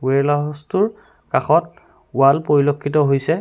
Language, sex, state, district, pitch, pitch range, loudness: Assamese, male, Assam, Sonitpur, 145 Hz, 140-155 Hz, -18 LUFS